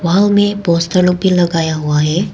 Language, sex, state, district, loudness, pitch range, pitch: Hindi, female, Arunachal Pradesh, Papum Pare, -13 LUFS, 165-190 Hz, 175 Hz